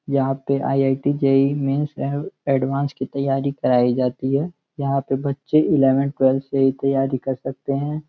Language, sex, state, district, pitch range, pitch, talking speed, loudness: Hindi, male, Uttar Pradesh, Gorakhpur, 135-140 Hz, 135 Hz, 170 wpm, -21 LUFS